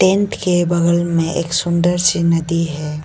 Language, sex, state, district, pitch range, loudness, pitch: Hindi, female, Arunachal Pradesh, Lower Dibang Valley, 165-175 Hz, -16 LUFS, 170 Hz